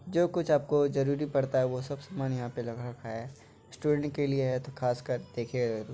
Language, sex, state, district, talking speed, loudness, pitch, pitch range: Maithili, male, Bihar, Begusarai, 220 wpm, -31 LUFS, 135 Hz, 120-145 Hz